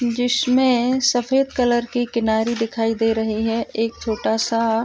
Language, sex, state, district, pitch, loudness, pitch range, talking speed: Hindi, female, Uttar Pradesh, Jyotiba Phule Nagar, 230 Hz, -20 LUFS, 225-245 Hz, 160 wpm